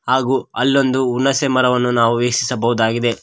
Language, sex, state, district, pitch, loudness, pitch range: Kannada, male, Karnataka, Koppal, 125 Hz, -16 LUFS, 120-130 Hz